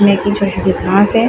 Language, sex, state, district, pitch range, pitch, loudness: Hindi, female, Chhattisgarh, Bilaspur, 200-205 Hz, 200 Hz, -14 LUFS